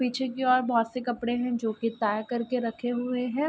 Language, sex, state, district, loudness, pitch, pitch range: Hindi, female, Bihar, Darbhanga, -28 LUFS, 245 Hz, 230-250 Hz